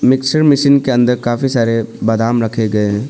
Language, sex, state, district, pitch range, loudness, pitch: Hindi, male, Arunachal Pradesh, Papum Pare, 115-135 Hz, -14 LUFS, 120 Hz